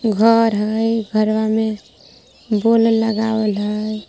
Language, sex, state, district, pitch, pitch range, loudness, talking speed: Magahi, female, Jharkhand, Palamu, 220 Hz, 215-225 Hz, -17 LUFS, 105 wpm